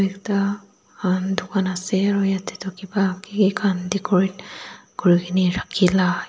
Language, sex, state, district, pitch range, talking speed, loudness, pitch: Nagamese, female, Nagaland, Dimapur, 185-200 Hz, 125 wpm, -21 LUFS, 190 Hz